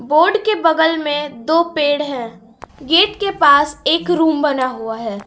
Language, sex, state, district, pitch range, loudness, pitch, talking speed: Hindi, female, Jharkhand, Palamu, 255-330 Hz, -15 LUFS, 295 Hz, 170 wpm